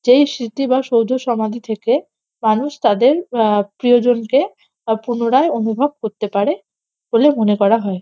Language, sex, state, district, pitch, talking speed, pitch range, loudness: Bengali, female, West Bengal, North 24 Parganas, 235 Hz, 125 wpm, 220-265 Hz, -17 LUFS